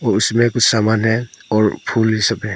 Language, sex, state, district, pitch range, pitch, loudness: Hindi, male, Arunachal Pradesh, Papum Pare, 110-115 Hz, 110 Hz, -16 LUFS